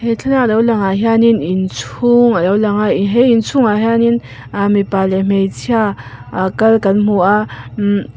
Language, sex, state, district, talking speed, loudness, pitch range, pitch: Mizo, female, Mizoram, Aizawl, 175 wpm, -13 LUFS, 195-230 Hz, 210 Hz